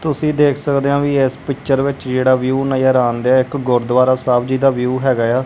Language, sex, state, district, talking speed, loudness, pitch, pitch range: Punjabi, male, Punjab, Kapurthala, 230 wpm, -15 LUFS, 130 Hz, 130-140 Hz